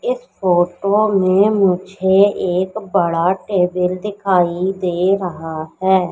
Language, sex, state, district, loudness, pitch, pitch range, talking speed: Hindi, female, Madhya Pradesh, Katni, -17 LUFS, 190 Hz, 180-200 Hz, 110 wpm